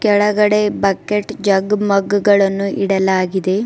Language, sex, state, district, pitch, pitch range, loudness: Kannada, female, Karnataka, Bidar, 200 Hz, 195-210 Hz, -15 LUFS